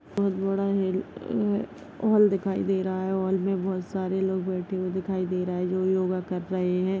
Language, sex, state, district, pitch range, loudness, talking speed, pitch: Hindi, female, Chhattisgarh, Bastar, 185-195 Hz, -27 LUFS, 215 wpm, 190 Hz